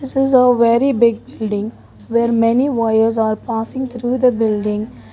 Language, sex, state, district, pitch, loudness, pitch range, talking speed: English, female, Karnataka, Bangalore, 230 Hz, -16 LUFS, 220-250 Hz, 165 wpm